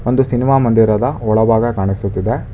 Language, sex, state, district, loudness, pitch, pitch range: Kannada, male, Karnataka, Bangalore, -14 LUFS, 115 Hz, 110-125 Hz